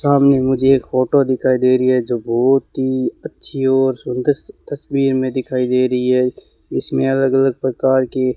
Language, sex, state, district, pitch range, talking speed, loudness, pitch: Hindi, male, Rajasthan, Bikaner, 125-135 Hz, 195 wpm, -17 LUFS, 130 Hz